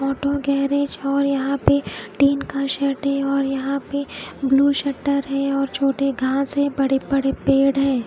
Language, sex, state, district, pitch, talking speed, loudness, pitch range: Hindi, female, Odisha, Khordha, 275 Hz, 165 wpm, -20 LUFS, 275-280 Hz